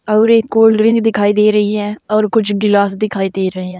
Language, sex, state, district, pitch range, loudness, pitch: Hindi, female, Uttar Pradesh, Saharanpur, 200-220 Hz, -13 LUFS, 210 Hz